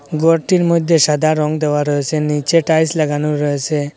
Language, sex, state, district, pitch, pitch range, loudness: Bengali, male, Assam, Hailakandi, 155 Hz, 150-160 Hz, -15 LUFS